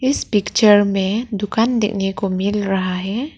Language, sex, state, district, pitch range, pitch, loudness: Hindi, female, Arunachal Pradesh, Lower Dibang Valley, 195-225 Hz, 205 Hz, -18 LUFS